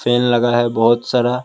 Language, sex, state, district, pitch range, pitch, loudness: Hindi, male, Assam, Kamrup Metropolitan, 120-125 Hz, 120 Hz, -15 LUFS